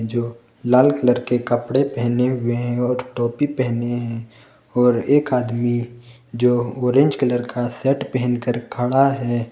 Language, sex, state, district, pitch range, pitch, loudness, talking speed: Hindi, male, Jharkhand, Palamu, 120-125 Hz, 120 Hz, -20 LUFS, 145 wpm